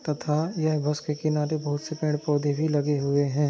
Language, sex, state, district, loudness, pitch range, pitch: Hindi, male, Maharashtra, Nagpur, -26 LUFS, 145-155 Hz, 150 Hz